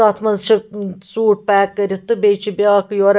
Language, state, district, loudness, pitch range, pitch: Kashmiri, Punjab, Kapurthala, -16 LUFS, 200-215 Hz, 205 Hz